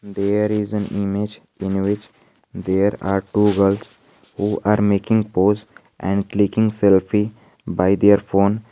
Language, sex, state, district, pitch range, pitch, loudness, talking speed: English, male, Jharkhand, Garhwa, 100-105 Hz, 100 Hz, -19 LUFS, 135 wpm